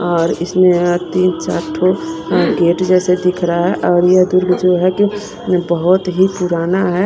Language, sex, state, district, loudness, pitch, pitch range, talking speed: Hindi, female, Punjab, Kapurthala, -14 LUFS, 180 Hz, 175-185 Hz, 170 wpm